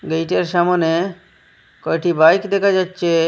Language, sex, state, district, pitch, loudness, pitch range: Bengali, male, Assam, Hailakandi, 175 Hz, -17 LUFS, 165-185 Hz